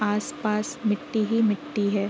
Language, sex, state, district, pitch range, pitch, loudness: Hindi, female, Uttar Pradesh, Varanasi, 205-225 Hz, 210 Hz, -25 LUFS